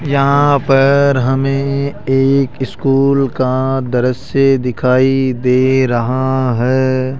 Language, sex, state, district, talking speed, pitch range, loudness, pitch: Hindi, male, Rajasthan, Jaipur, 90 wpm, 130-135 Hz, -13 LUFS, 130 Hz